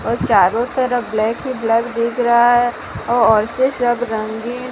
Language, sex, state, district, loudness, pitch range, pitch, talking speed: Hindi, female, Odisha, Sambalpur, -16 LUFS, 230-245 Hz, 240 Hz, 140 wpm